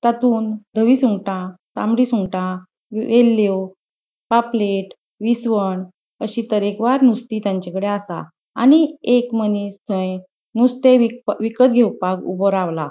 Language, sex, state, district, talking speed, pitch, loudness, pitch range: Konkani, female, Goa, North and South Goa, 110 wpm, 215 Hz, -18 LUFS, 190-235 Hz